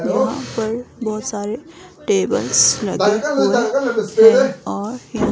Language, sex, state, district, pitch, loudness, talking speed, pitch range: Hindi, female, Himachal Pradesh, Shimla, 225 Hz, -17 LUFS, 115 wpm, 215-260 Hz